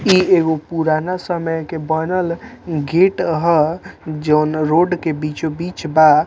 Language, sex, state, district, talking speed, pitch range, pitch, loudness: Bhojpuri, male, Bihar, Muzaffarpur, 125 wpm, 155-180 Hz, 165 Hz, -17 LUFS